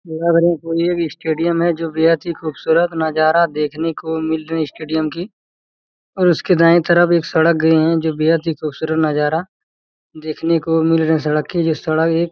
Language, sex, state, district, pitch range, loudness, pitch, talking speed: Hindi, male, Chhattisgarh, Raigarh, 160-170 Hz, -17 LUFS, 165 Hz, 200 wpm